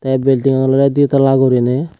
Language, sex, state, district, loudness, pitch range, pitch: Chakma, female, Tripura, West Tripura, -13 LUFS, 130-140 Hz, 135 Hz